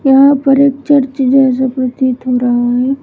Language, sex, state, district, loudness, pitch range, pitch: Hindi, female, Uttar Pradesh, Shamli, -11 LUFS, 255-275 Hz, 265 Hz